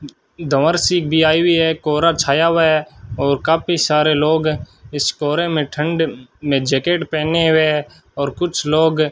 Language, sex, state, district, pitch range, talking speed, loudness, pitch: Hindi, male, Rajasthan, Bikaner, 145-160 Hz, 170 wpm, -16 LUFS, 155 Hz